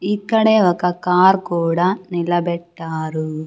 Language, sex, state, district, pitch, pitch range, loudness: Telugu, female, Andhra Pradesh, Sri Satya Sai, 175 Hz, 170-190 Hz, -17 LUFS